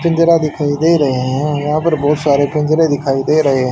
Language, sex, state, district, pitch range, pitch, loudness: Hindi, male, Haryana, Charkhi Dadri, 140-155 Hz, 150 Hz, -14 LUFS